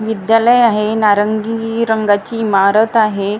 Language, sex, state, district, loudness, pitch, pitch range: Marathi, female, Maharashtra, Gondia, -13 LUFS, 220 Hz, 205-225 Hz